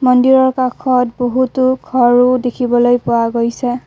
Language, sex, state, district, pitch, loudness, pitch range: Assamese, female, Assam, Kamrup Metropolitan, 250 Hz, -13 LUFS, 245-255 Hz